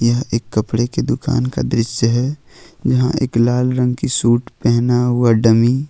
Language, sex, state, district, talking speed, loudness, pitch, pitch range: Hindi, male, Jharkhand, Ranchi, 185 wpm, -16 LUFS, 120 Hz, 115-125 Hz